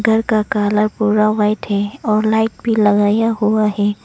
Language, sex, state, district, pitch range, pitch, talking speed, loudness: Hindi, female, Arunachal Pradesh, Longding, 210-220 Hz, 215 Hz, 175 wpm, -16 LUFS